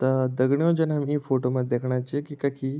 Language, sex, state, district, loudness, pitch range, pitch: Garhwali, male, Uttarakhand, Tehri Garhwal, -25 LUFS, 130-145 Hz, 135 Hz